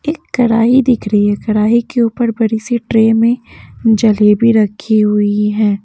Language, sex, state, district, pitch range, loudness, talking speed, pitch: Hindi, female, Haryana, Jhajjar, 210-235 Hz, -13 LUFS, 165 wpm, 225 Hz